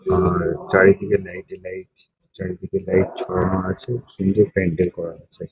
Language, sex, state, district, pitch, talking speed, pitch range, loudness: Bengali, male, West Bengal, Kolkata, 95 Hz, 150 wpm, 90-100 Hz, -20 LUFS